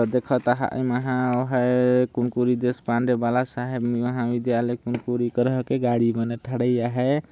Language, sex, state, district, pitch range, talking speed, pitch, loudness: Sadri, male, Chhattisgarh, Jashpur, 120-125 Hz, 130 wpm, 125 Hz, -23 LUFS